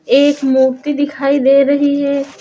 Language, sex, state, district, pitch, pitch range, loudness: Hindi, female, Chhattisgarh, Raipur, 280 Hz, 270-285 Hz, -13 LUFS